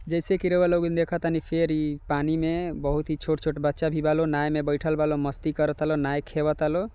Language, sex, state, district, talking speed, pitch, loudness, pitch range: Maithili, male, Bihar, Samastipur, 215 wpm, 155 Hz, -26 LUFS, 150-165 Hz